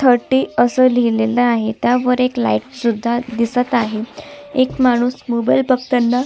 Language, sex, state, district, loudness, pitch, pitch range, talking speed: Marathi, female, Maharashtra, Sindhudurg, -16 LUFS, 245 Hz, 235-255 Hz, 135 wpm